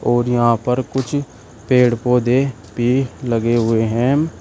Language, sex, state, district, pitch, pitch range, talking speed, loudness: Hindi, male, Uttar Pradesh, Shamli, 125 Hz, 120-130 Hz, 135 wpm, -17 LUFS